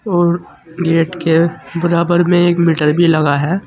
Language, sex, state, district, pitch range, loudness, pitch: Hindi, male, Uttar Pradesh, Saharanpur, 165-175 Hz, -14 LUFS, 170 Hz